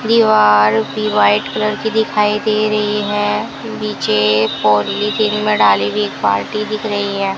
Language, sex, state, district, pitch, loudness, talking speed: Hindi, female, Rajasthan, Bikaner, 210 Hz, -15 LUFS, 155 wpm